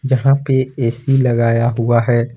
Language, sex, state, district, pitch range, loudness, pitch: Hindi, male, Jharkhand, Ranchi, 120-130 Hz, -15 LUFS, 120 Hz